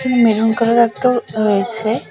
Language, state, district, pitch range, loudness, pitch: Bengali, West Bengal, Alipurduar, 220-240 Hz, -15 LUFS, 230 Hz